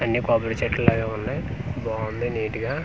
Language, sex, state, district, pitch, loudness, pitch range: Telugu, male, Andhra Pradesh, Manyam, 115 Hz, -25 LUFS, 110-120 Hz